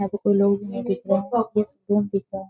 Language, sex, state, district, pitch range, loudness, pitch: Hindi, female, Bihar, Sitamarhi, 195-205 Hz, -23 LUFS, 200 Hz